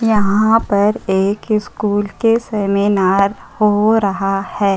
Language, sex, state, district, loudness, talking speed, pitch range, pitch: Hindi, female, Uttar Pradesh, Hamirpur, -15 LUFS, 115 wpm, 195-215 Hz, 205 Hz